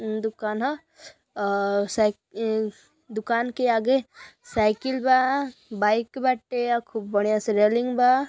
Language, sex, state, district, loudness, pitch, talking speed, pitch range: Hindi, female, Uttar Pradesh, Gorakhpur, -24 LUFS, 230 Hz, 130 wpm, 215-255 Hz